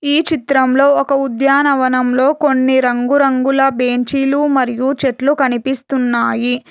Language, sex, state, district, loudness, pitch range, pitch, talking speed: Telugu, female, Telangana, Hyderabad, -14 LUFS, 255-280 Hz, 270 Hz, 90 wpm